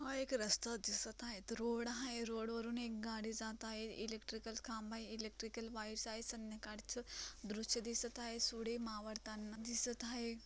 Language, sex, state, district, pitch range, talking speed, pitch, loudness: Marathi, female, Maharashtra, Solapur, 220-235 Hz, 160 wpm, 225 Hz, -44 LUFS